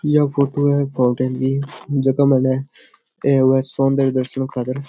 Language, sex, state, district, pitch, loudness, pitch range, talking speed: Rajasthani, male, Rajasthan, Churu, 135 Hz, -18 LUFS, 130-140 Hz, 185 wpm